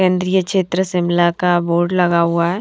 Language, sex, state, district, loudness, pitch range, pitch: Hindi, female, Himachal Pradesh, Shimla, -16 LUFS, 170-185 Hz, 175 Hz